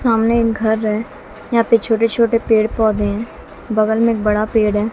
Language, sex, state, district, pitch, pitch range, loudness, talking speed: Hindi, female, Bihar, West Champaran, 225 Hz, 215-230 Hz, -16 LUFS, 195 wpm